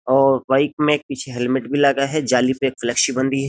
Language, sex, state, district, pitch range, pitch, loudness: Hindi, male, Uttar Pradesh, Jyotiba Phule Nagar, 130-140 Hz, 135 Hz, -19 LUFS